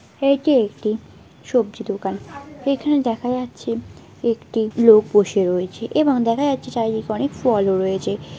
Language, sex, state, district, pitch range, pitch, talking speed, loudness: Bengali, male, West Bengal, Paschim Medinipur, 215-265 Hz, 230 Hz, 135 wpm, -20 LUFS